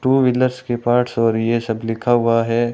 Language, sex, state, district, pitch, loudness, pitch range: Hindi, male, Rajasthan, Bikaner, 120 Hz, -18 LUFS, 115-125 Hz